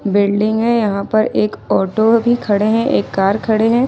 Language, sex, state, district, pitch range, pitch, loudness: Hindi, female, Jharkhand, Ranchi, 200-230 Hz, 215 Hz, -15 LUFS